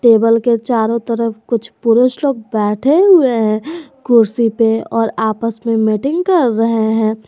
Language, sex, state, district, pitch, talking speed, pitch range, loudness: Hindi, female, Jharkhand, Garhwa, 230 Hz, 155 wpm, 220-250 Hz, -14 LUFS